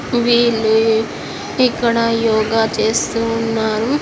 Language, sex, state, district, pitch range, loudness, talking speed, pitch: Telugu, female, Andhra Pradesh, Srikakulam, 220-235 Hz, -16 LUFS, 75 wpm, 230 Hz